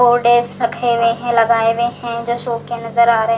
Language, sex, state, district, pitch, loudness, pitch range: Hindi, female, Delhi, New Delhi, 235 Hz, -16 LUFS, 230-240 Hz